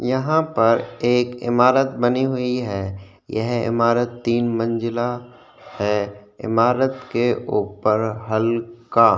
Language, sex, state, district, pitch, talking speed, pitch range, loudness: Hindi, male, Uttarakhand, Tehri Garhwal, 120 Hz, 110 wpm, 110-125 Hz, -20 LUFS